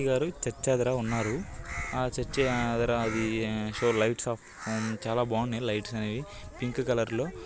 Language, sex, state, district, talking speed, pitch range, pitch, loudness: Telugu, male, Andhra Pradesh, Krishna, 145 wpm, 110-125 Hz, 115 Hz, -30 LUFS